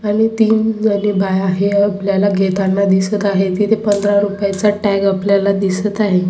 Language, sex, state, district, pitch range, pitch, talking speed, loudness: Marathi, female, Maharashtra, Sindhudurg, 195-205 Hz, 200 Hz, 170 wpm, -15 LUFS